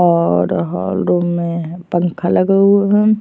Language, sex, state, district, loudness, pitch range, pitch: Hindi, female, Uttar Pradesh, Jyotiba Phule Nagar, -15 LUFS, 160-195 Hz, 175 Hz